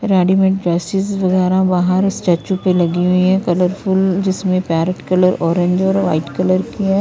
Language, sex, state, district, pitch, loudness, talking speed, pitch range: Hindi, female, Punjab, Kapurthala, 185 Hz, -15 LUFS, 165 wpm, 180-190 Hz